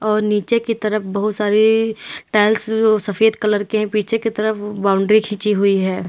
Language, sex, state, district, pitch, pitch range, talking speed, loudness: Hindi, female, Uttar Pradesh, Lalitpur, 215 Hz, 205-220 Hz, 185 wpm, -17 LUFS